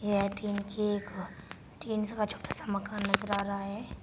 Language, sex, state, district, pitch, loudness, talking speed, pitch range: Hindi, female, Uttar Pradesh, Shamli, 205 Hz, -33 LUFS, 165 wpm, 200-210 Hz